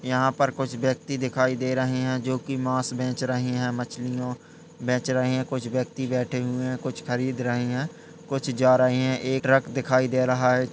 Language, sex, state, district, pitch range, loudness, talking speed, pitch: Hindi, male, Uttar Pradesh, Jalaun, 125-130 Hz, -25 LUFS, 205 wpm, 130 Hz